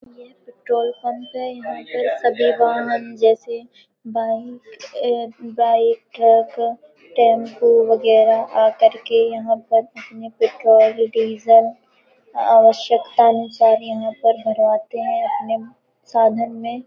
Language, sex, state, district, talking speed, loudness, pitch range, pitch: Hindi, female, Uttar Pradesh, Hamirpur, 115 wpm, -17 LUFS, 225-240 Hz, 230 Hz